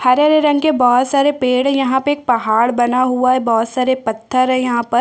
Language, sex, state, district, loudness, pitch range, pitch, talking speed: Hindi, female, Chhattisgarh, Bastar, -15 LUFS, 245-270 Hz, 255 Hz, 240 wpm